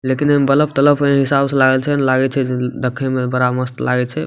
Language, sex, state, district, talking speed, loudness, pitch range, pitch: Maithili, male, Bihar, Supaul, 280 wpm, -16 LUFS, 125-140 Hz, 130 Hz